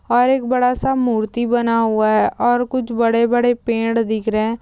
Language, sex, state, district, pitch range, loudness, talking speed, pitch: Hindi, female, Andhra Pradesh, Chittoor, 225-245 Hz, -17 LUFS, 180 wpm, 235 Hz